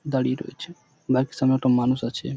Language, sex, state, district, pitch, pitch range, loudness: Bengali, male, West Bengal, Purulia, 130 Hz, 125-140 Hz, -23 LUFS